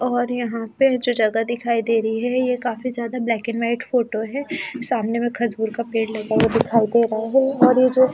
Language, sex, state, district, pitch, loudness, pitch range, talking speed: Hindi, female, Delhi, New Delhi, 235 Hz, -20 LUFS, 225-250 Hz, 190 wpm